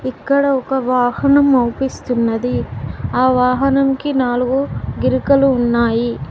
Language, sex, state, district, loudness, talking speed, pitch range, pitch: Telugu, female, Telangana, Mahabubabad, -16 LUFS, 95 wpm, 240-275 Hz, 255 Hz